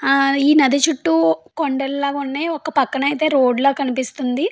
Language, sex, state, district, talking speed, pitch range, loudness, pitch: Telugu, female, Andhra Pradesh, Anantapur, 160 wpm, 265-295 Hz, -18 LUFS, 275 Hz